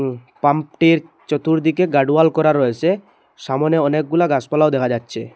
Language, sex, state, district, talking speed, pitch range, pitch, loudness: Bengali, male, Assam, Hailakandi, 135 wpm, 135-160 Hz, 155 Hz, -17 LUFS